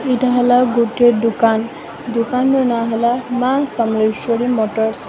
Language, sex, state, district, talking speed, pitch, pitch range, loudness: Odia, female, Odisha, Sambalpur, 120 wpm, 235 Hz, 230-250 Hz, -16 LUFS